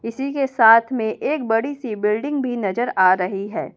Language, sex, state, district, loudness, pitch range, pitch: Hindi, female, Delhi, New Delhi, -19 LUFS, 210-265 Hz, 230 Hz